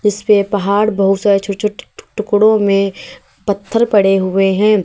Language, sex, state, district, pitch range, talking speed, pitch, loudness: Hindi, female, Uttar Pradesh, Lalitpur, 195-210 Hz, 150 wpm, 200 Hz, -14 LUFS